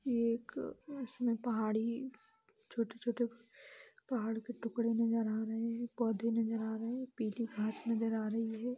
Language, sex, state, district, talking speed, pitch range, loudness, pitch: Hindi, female, Bihar, Darbhanga, 155 wpm, 225-245 Hz, -37 LUFS, 230 Hz